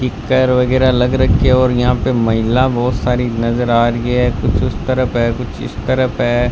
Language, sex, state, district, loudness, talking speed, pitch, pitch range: Hindi, male, Rajasthan, Bikaner, -15 LUFS, 210 wpm, 125 Hz, 120-130 Hz